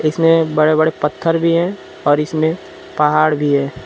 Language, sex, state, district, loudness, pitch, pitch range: Hindi, male, Uttar Pradesh, Lucknow, -15 LUFS, 155 Hz, 150-165 Hz